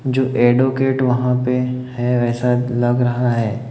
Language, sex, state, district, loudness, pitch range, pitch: Hindi, male, Maharashtra, Gondia, -17 LUFS, 120-125 Hz, 125 Hz